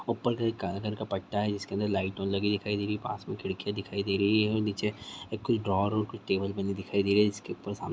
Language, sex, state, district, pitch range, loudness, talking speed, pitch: Hindi, male, Bihar, Sitamarhi, 100-105 Hz, -30 LUFS, 270 wpm, 105 Hz